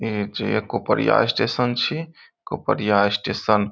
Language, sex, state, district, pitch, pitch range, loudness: Maithili, male, Bihar, Saharsa, 105 Hz, 105-125 Hz, -21 LUFS